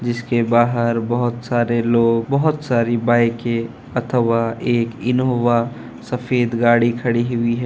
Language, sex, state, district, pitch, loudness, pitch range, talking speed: Hindi, male, Bihar, Kishanganj, 120 Hz, -18 LUFS, 115-120 Hz, 125 wpm